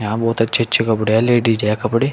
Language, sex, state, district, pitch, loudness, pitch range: Hindi, male, Uttar Pradesh, Shamli, 115 Hz, -16 LUFS, 110-115 Hz